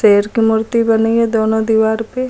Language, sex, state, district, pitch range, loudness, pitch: Hindi, female, Uttar Pradesh, Lucknow, 220-230 Hz, -14 LUFS, 225 Hz